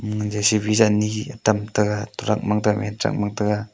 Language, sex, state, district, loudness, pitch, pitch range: Wancho, male, Arunachal Pradesh, Longding, -21 LUFS, 105 Hz, 105-110 Hz